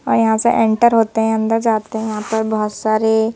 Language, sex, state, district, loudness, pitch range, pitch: Hindi, female, Madhya Pradesh, Bhopal, -16 LUFS, 220-225 Hz, 220 Hz